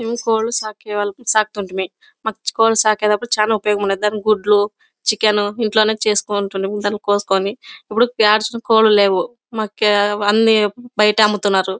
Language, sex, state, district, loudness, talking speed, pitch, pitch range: Telugu, female, Karnataka, Bellary, -17 LUFS, 120 wpm, 215 Hz, 205-220 Hz